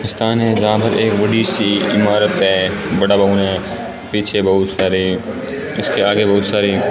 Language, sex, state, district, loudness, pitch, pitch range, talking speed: Hindi, male, Rajasthan, Bikaner, -15 LUFS, 105 Hz, 100-105 Hz, 175 wpm